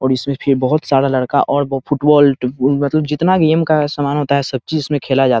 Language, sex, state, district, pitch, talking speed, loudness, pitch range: Hindi, male, Bihar, Muzaffarpur, 140 Hz, 245 wpm, -15 LUFS, 135-150 Hz